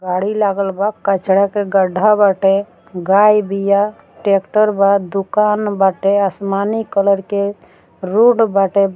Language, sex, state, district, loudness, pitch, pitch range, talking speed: Bhojpuri, female, Bihar, Muzaffarpur, -15 LUFS, 200 Hz, 195-210 Hz, 120 wpm